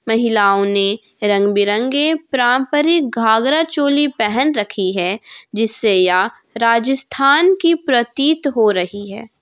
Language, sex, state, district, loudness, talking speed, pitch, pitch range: Hindi, female, Jharkhand, Ranchi, -15 LUFS, 115 wpm, 230 Hz, 205-285 Hz